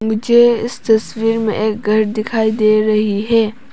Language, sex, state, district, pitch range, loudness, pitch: Hindi, female, Arunachal Pradesh, Papum Pare, 215-225 Hz, -15 LUFS, 220 Hz